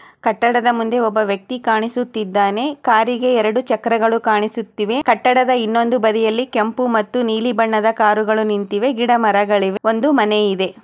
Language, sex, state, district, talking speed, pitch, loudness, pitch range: Kannada, female, Karnataka, Chamarajanagar, 125 wpm, 225 Hz, -16 LUFS, 215-245 Hz